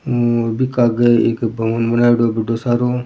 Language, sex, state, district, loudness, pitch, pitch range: Rajasthani, male, Rajasthan, Churu, -16 LUFS, 120 Hz, 115-120 Hz